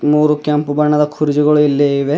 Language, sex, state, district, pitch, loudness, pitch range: Kannada, male, Karnataka, Bidar, 150 Hz, -14 LUFS, 145-150 Hz